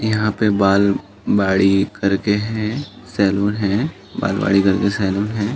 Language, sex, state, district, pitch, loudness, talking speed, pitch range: Hindi, male, Uttar Pradesh, Jalaun, 100 Hz, -18 LUFS, 130 wpm, 100-105 Hz